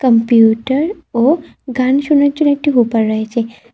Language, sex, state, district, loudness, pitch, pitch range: Bengali, female, Tripura, West Tripura, -14 LUFS, 255 Hz, 230-285 Hz